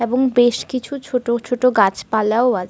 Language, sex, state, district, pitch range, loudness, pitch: Bengali, female, Jharkhand, Sahebganj, 220-250 Hz, -18 LUFS, 240 Hz